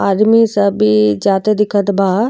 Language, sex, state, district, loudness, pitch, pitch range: Bhojpuri, female, Uttar Pradesh, Gorakhpur, -13 LUFS, 200 Hz, 190-215 Hz